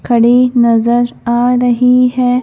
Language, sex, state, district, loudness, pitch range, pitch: Hindi, female, Madhya Pradesh, Bhopal, -11 LUFS, 240-250 Hz, 245 Hz